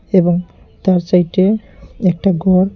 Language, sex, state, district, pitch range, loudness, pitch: Bengali, male, Tripura, Unakoti, 180-190 Hz, -15 LUFS, 185 Hz